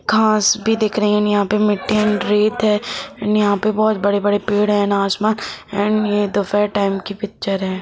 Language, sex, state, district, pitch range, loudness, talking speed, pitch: Hindi, male, Jharkhand, Jamtara, 200-215 Hz, -17 LUFS, 205 wpm, 210 Hz